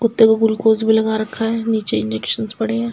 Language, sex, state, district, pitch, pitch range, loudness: Hindi, female, Bihar, Saharsa, 220 Hz, 220-225 Hz, -17 LUFS